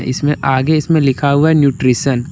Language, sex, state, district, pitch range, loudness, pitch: Hindi, male, Jharkhand, Deoghar, 130-150 Hz, -13 LUFS, 140 Hz